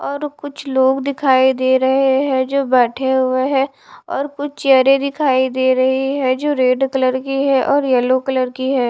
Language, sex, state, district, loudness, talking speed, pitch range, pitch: Hindi, female, Haryana, Charkhi Dadri, -16 LUFS, 190 wpm, 260-275 Hz, 265 Hz